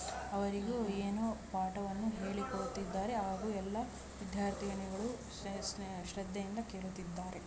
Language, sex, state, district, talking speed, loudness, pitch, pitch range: Kannada, female, Karnataka, Belgaum, 70 wpm, -40 LUFS, 200 Hz, 190-215 Hz